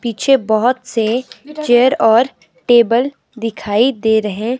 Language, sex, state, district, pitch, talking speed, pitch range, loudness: Hindi, female, Himachal Pradesh, Shimla, 235 Hz, 115 wpm, 220-255 Hz, -15 LUFS